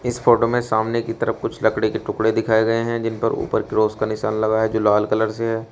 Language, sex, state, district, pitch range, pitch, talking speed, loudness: Hindi, male, Uttar Pradesh, Shamli, 110-115 Hz, 110 Hz, 270 wpm, -20 LUFS